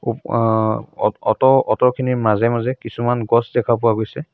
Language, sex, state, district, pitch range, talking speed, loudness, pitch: Assamese, male, Assam, Sonitpur, 115-125 Hz, 180 wpm, -18 LUFS, 120 Hz